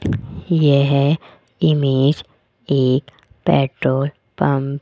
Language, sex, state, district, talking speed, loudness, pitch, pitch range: Hindi, female, Rajasthan, Jaipur, 75 wpm, -18 LUFS, 140 Hz, 135-145 Hz